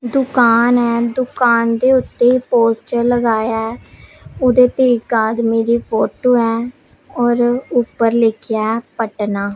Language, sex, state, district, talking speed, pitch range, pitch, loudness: Punjabi, female, Punjab, Pathankot, 120 wpm, 225-245 Hz, 235 Hz, -15 LUFS